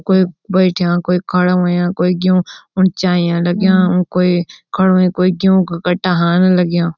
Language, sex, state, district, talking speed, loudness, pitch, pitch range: Garhwali, female, Uttarakhand, Uttarkashi, 165 wpm, -14 LUFS, 180 Hz, 175-185 Hz